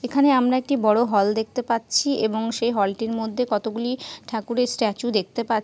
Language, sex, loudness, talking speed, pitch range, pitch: Bengali, female, -22 LUFS, 180 wpm, 220-250 Hz, 230 Hz